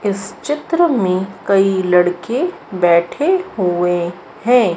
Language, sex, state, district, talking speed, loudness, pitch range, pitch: Hindi, female, Madhya Pradesh, Dhar, 100 wpm, -16 LUFS, 180-245 Hz, 190 Hz